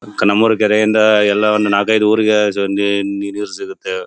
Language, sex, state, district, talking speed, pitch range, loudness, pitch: Kannada, male, Karnataka, Bellary, 145 wpm, 100-110 Hz, -14 LUFS, 105 Hz